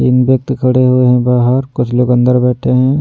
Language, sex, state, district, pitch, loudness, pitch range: Hindi, male, Delhi, New Delhi, 125 Hz, -11 LUFS, 125-130 Hz